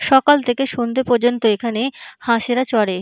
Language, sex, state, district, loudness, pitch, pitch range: Bengali, female, West Bengal, North 24 Parganas, -17 LUFS, 245 Hz, 230-260 Hz